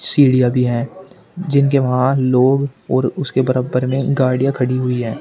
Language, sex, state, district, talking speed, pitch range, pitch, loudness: Hindi, male, Uttar Pradesh, Shamli, 160 wpm, 125-140 Hz, 130 Hz, -16 LUFS